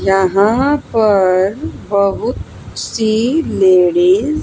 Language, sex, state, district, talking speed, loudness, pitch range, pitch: Hindi, female, Haryana, Jhajjar, 80 wpm, -13 LUFS, 185-220 Hz, 195 Hz